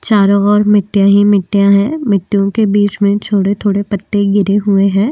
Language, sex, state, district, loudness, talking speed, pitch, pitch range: Hindi, female, Uttarakhand, Tehri Garhwal, -12 LUFS, 175 wpm, 200 Hz, 200-205 Hz